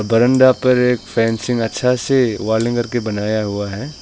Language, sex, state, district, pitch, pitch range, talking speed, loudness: Hindi, male, Arunachal Pradesh, Longding, 120 Hz, 110-125 Hz, 165 wpm, -17 LUFS